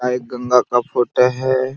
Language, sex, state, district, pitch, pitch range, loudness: Hindi, male, Jharkhand, Sahebganj, 125 Hz, 125-130 Hz, -17 LUFS